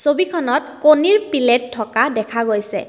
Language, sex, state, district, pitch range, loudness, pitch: Assamese, female, Assam, Kamrup Metropolitan, 225-305 Hz, -16 LUFS, 270 Hz